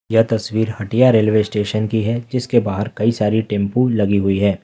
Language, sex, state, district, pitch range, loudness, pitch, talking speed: Hindi, male, Jharkhand, Ranchi, 105-115 Hz, -17 LUFS, 110 Hz, 195 wpm